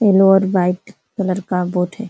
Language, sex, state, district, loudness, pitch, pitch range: Hindi, female, Uttar Pradesh, Ghazipur, -16 LUFS, 195 Hz, 180-195 Hz